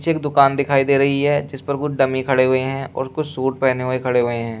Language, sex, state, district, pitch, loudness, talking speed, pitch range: Hindi, male, Uttar Pradesh, Shamli, 135 Hz, -19 LUFS, 285 wpm, 130-140 Hz